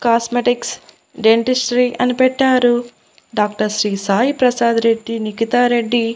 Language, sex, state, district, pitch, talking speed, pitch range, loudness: Telugu, female, Andhra Pradesh, Annamaya, 240 Hz, 95 wpm, 225-245 Hz, -16 LUFS